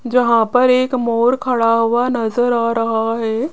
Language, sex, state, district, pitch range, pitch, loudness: Hindi, female, Rajasthan, Jaipur, 230-250 Hz, 235 Hz, -16 LUFS